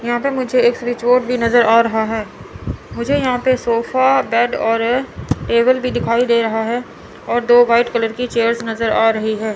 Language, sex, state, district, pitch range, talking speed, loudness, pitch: Hindi, female, Chandigarh, Chandigarh, 230-245 Hz, 200 wpm, -16 LUFS, 235 Hz